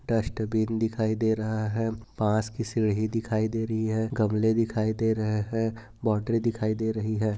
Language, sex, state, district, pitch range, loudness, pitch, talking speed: Hindi, male, Uttar Pradesh, Budaun, 110-115 Hz, -27 LUFS, 110 Hz, 180 wpm